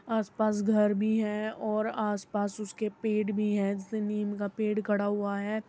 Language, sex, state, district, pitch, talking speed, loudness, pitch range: Hindi, female, Uttar Pradesh, Muzaffarnagar, 210 Hz, 180 wpm, -30 LUFS, 205-215 Hz